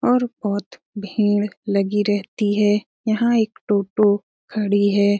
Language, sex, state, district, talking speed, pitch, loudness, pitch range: Hindi, female, Bihar, Lakhisarai, 125 wpm, 205 Hz, -20 LUFS, 205-215 Hz